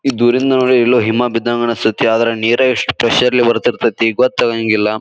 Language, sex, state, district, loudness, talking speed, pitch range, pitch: Kannada, male, Karnataka, Bijapur, -13 LUFS, 165 wpm, 115-125 Hz, 120 Hz